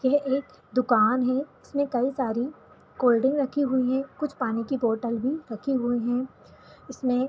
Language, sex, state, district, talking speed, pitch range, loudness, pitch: Hindi, female, Jharkhand, Sahebganj, 175 wpm, 245-270 Hz, -26 LUFS, 260 Hz